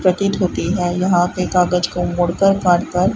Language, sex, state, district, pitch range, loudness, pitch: Hindi, female, Rajasthan, Bikaner, 175-185 Hz, -17 LUFS, 180 Hz